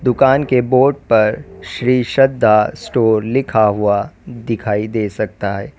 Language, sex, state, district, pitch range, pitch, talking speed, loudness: Hindi, female, Uttar Pradesh, Lalitpur, 105-130 Hz, 115 Hz, 135 wpm, -15 LUFS